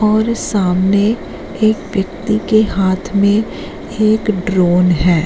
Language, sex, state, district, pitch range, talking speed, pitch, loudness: Hindi, female, Jharkhand, Jamtara, 185-215 Hz, 115 wpm, 200 Hz, -15 LUFS